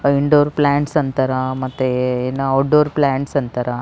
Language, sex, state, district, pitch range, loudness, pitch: Kannada, female, Karnataka, Raichur, 130-145 Hz, -17 LUFS, 135 Hz